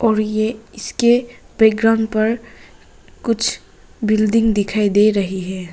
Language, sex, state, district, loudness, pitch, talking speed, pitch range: Hindi, female, Arunachal Pradesh, Papum Pare, -17 LUFS, 220 Hz, 115 wpm, 210-230 Hz